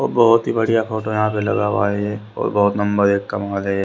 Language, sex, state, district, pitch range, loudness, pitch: Hindi, male, Haryana, Rohtak, 100-110 Hz, -18 LUFS, 105 Hz